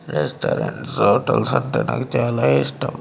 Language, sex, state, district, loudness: Telugu, male, Andhra Pradesh, Srikakulam, -20 LUFS